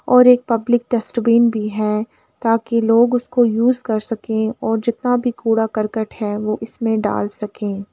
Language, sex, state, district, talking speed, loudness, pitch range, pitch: Hindi, female, Uttar Pradesh, Jalaun, 160 wpm, -18 LUFS, 215-240 Hz, 225 Hz